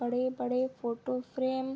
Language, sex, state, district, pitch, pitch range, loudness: Hindi, female, Chhattisgarh, Bilaspur, 255 Hz, 245-260 Hz, -33 LUFS